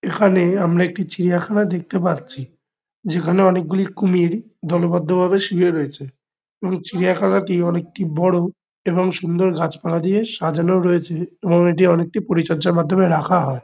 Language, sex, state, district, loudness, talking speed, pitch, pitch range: Bengali, male, West Bengal, Kolkata, -19 LUFS, 130 wpm, 180 Hz, 170-185 Hz